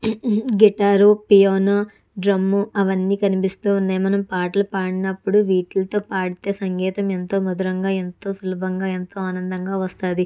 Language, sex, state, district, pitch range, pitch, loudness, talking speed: Telugu, female, Andhra Pradesh, Chittoor, 185-200 Hz, 195 Hz, -20 LUFS, 110 wpm